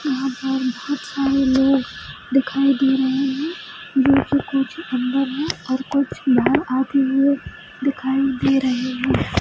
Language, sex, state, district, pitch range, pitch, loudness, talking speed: Hindi, female, Bihar, Jahanabad, 265-280 Hz, 275 Hz, -20 LUFS, 135 wpm